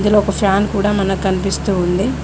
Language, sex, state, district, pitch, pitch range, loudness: Telugu, female, Telangana, Mahabubabad, 195 Hz, 195-205 Hz, -16 LUFS